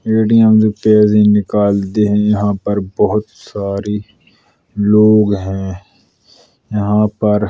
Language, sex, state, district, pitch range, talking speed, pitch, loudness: Bundeli, male, Uttar Pradesh, Jalaun, 100-105 Hz, 110 wpm, 105 Hz, -13 LUFS